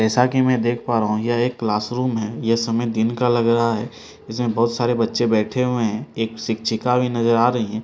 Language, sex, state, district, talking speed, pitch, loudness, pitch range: Hindi, male, Delhi, New Delhi, 255 wpm, 115 Hz, -20 LUFS, 110-120 Hz